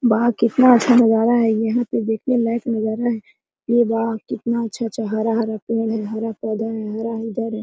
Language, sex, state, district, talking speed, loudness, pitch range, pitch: Hindi, female, Jharkhand, Sahebganj, 195 wpm, -19 LUFS, 220-235 Hz, 225 Hz